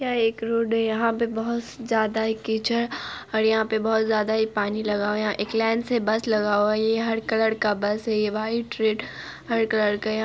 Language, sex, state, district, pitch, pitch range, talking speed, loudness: Hindi, female, Bihar, Saharsa, 220 Hz, 215-230 Hz, 245 wpm, -24 LUFS